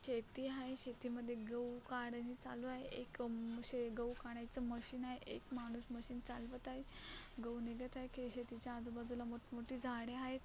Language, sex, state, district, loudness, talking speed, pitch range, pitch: Marathi, female, Maharashtra, Solapur, -46 LUFS, 155 wpm, 235-255 Hz, 245 Hz